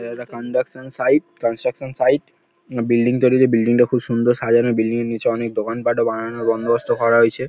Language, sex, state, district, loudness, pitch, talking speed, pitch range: Bengali, male, West Bengal, Paschim Medinipur, -19 LUFS, 120 Hz, 210 wpm, 115-125 Hz